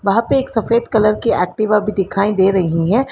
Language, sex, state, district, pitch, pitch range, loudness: Hindi, female, Karnataka, Bangalore, 210 Hz, 195-230 Hz, -16 LUFS